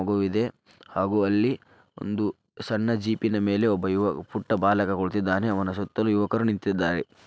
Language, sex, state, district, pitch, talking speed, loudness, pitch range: Kannada, male, Karnataka, Dharwad, 100 Hz, 115 wpm, -26 LUFS, 100-110 Hz